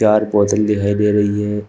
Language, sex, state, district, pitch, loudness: Hindi, male, Uttar Pradesh, Shamli, 105 Hz, -16 LUFS